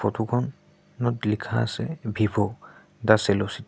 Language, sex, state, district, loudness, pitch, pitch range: Assamese, male, Assam, Sonitpur, -25 LUFS, 115 Hz, 105-130 Hz